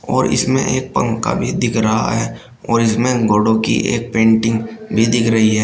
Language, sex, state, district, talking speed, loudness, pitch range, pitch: Hindi, male, Uttar Pradesh, Shamli, 190 wpm, -16 LUFS, 110-115 Hz, 110 Hz